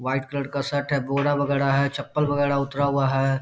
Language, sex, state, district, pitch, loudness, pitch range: Hindi, male, Bihar, Bhagalpur, 140 Hz, -23 LUFS, 135-145 Hz